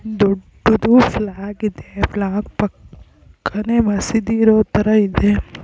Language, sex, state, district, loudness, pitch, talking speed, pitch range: Kannada, female, Karnataka, Raichur, -17 LUFS, 210 Hz, 105 wpm, 190-220 Hz